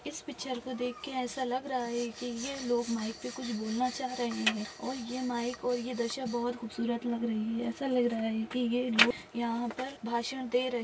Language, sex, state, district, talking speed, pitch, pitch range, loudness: Hindi, female, Maharashtra, Nagpur, 230 wpm, 240 Hz, 235-255 Hz, -33 LUFS